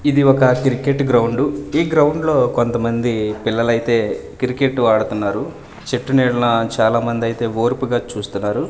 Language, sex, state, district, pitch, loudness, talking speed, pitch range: Telugu, male, Andhra Pradesh, Manyam, 120 Hz, -17 LUFS, 140 wpm, 115-135 Hz